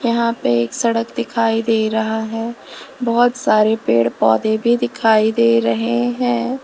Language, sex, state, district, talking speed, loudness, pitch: Hindi, female, Uttar Pradesh, Lalitpur, 155 wpm, -17 LUFS, 220 Hz